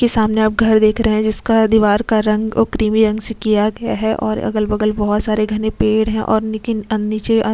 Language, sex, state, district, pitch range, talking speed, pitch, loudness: Hindi, female, Chhattisgarh, Kabirdham, 215-220 Hz, 245 wpm, 215 Hz, -16 LUFS